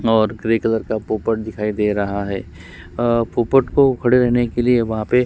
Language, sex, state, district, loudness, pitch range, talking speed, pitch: Hindi, female, Chhattisgarh, Sukma, -18 LUFS, 105-120 Hz, 205 wpm, 115 Hz